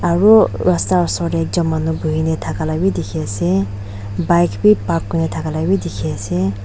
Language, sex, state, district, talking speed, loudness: Nagamese, female, Nagaland, Dimapur, 190 wpm, -17 LUFS